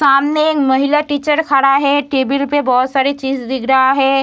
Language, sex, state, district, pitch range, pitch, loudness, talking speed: Hindi, female, Bihar, Samastipur, 265-290 Hz, 275 Hz, -14 LUFS, 185 wpm